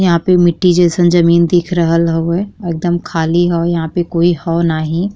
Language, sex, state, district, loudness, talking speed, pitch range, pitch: Bhojpuri, female, Uttar Pradesh, Gorakhpur, -13 LUFS, 185 wpm, 170-175 Hz, 170 Hz